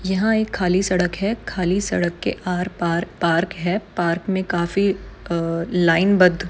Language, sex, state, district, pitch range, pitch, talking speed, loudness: Hindi, female, Bihar, Saran, 170-195 Hz, 180 Hz, 155 wpm, -21 LUFS